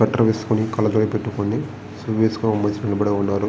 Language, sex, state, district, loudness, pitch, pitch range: Telugu, male, Andhra Pradesh, Srikakulam, -21 LUFS, 110 Hz, 105-110 Hz